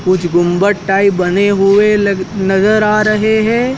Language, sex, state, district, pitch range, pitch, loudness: Hindi, male, Madhya Pradesh, Dhar, 190-215 Hz, 200 Hz, -12 LUFS